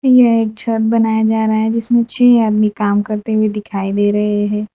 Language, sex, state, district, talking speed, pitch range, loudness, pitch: Hindi, female, Gujarat, Valsad, 215 wpm, 210-230 Hz, -14 LUFS, 220 Hz